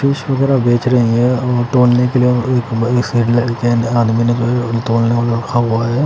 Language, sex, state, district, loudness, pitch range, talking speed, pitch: Hindi, male, Chandigarh, Chandigarh, -14 LUFS, 115-125 Hz, 50 wpm, 120 Hz